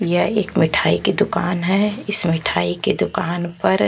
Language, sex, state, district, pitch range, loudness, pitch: Hindi, female, Haryana, Jhajjar, 170-205 Hz, -19 LUFS, 175 Hz